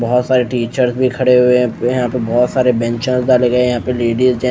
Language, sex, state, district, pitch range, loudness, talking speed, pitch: Hindi, male, Odisha, Nuapada, 120-125 Hz, -14 LUFS, 255 wpm, 125 Hz